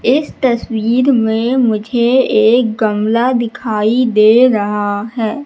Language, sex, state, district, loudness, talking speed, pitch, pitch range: Hindi, female, Madhya Pradesh, Katni, -13 LUFS, 110 wpm, 230 Hz, 215-250 Hz